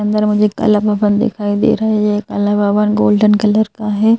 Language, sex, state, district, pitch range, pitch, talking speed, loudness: Hindi, male, Madhya Pradesh, Bhopal, 210-215 Hz, 210 Hz, 200 wpm, -14 LUFS